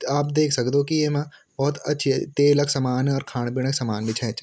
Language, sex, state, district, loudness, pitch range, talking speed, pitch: Garhwali, male, Uttarakhand, Tehri Garhwal, -23 LUFS, 125-145 Hz, 215 wpm, 140 Hz